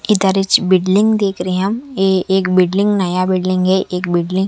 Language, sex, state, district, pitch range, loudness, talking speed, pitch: Hindi, female, Haryana, Charkhi Dadri, 185-195 Hz, -15 LUFS, 200 wpm, 190 Hz